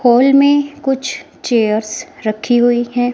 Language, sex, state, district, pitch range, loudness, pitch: Hindi, female, Himachal Pradesh, Shimla, 230-270 Hz, -14 LUFS, 245 Hz